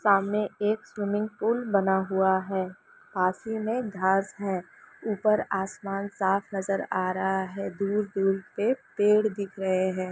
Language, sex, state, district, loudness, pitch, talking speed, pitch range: Hindi, female, Chhattisgarh, Raigarh, -27 LUFS, 195 Hz, 150 wpm, 190-210 Hz